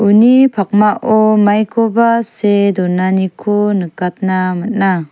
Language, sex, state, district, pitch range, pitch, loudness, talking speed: Garo, female, Meghalaya, South Garo Hills, 190-220 Hz, 205 Hz, -13 LUFS, 80 wpm